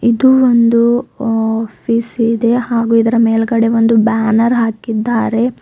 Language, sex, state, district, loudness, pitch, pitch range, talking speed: Kannada, female, Karnataka, Bidar, -13 LUFS, 230 Hz, 225-235 Hz, 105 wpm